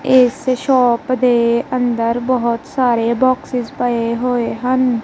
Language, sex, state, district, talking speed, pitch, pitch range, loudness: Punjabi, female, Punjab, Kapurthala, 120 wpm, 245 Hz, 235-255 Hz, -16 LUFS